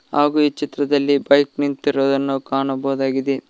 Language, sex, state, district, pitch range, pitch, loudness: Kannada, male, Karnataka, Koppal, 135-145 Hz, 140 Hz, -19 LUFS